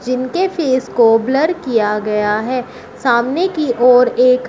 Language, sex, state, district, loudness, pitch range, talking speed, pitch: Hindi, female, Uttar Pradesh, Shamli, -15 LUFS, 235-265 Hz, 145 wpm, 250 Hz